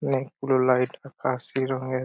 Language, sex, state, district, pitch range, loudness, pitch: Bengali, male, West Bengal, Purulia, 130-135 Hz, -26 LUFS, 130 Hz